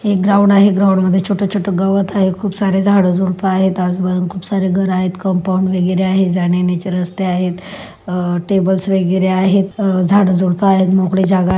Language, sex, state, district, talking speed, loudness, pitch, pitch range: Marathi, female, Maharashtra, Solapur, 180 wpm, -14 LUFS, 190 Hz, 185-195 Hz